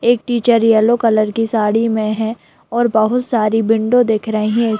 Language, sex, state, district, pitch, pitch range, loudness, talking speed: Hindi, female, Bihar, Araria, 225 Hz, 220-235 Hz, -15 LUFS, 190 wpm